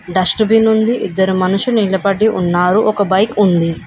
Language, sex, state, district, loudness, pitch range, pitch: Telugu, female, Telangana, Komaram Bheem, -13 LUFS, 185-220 Hz, 200 Hz